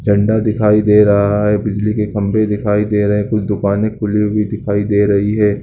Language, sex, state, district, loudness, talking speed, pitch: Hindi, male, Bihar, Lakhisarai, -14 LUFS, 215 wpm, 105 Hz